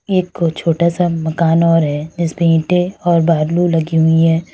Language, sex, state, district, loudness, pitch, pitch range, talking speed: Hindi, female, Uttar Pradesh, Lalitpur, -15 LUFS, 165 Hz, 160-175 Hz, 170 wpm